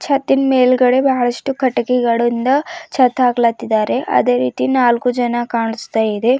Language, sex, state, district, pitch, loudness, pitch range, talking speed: Kannada, female, Karnataka, Bidar, 245 Hz, -15 LUFS, 230-260 Hz, 120 wpm